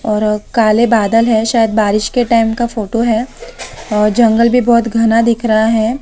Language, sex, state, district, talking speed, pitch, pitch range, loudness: Hindi, female, Maharashtra, Mumbai Suburban, 200 wpm, 225 Hz, 220-235 Hz, -12 LUFS